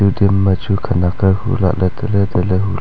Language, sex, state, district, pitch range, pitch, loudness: Wancho, male, Arunachal Pradesh, Longding, 95-100 Hz, 100 Hz, -16 LUFS